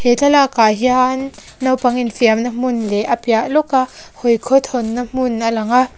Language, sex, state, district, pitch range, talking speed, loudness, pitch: Mizo, female, Mizoram, Aizawl, 230-260 Hz, 160 wpm, -16 LUFS, 245 Hz